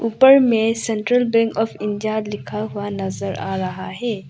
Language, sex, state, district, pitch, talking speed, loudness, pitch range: Hindi, female, Arunachal Pradesh, Lower Dibang Valley, 220 Hz, 165 wpm, -19 LUFS, 205-230 Hz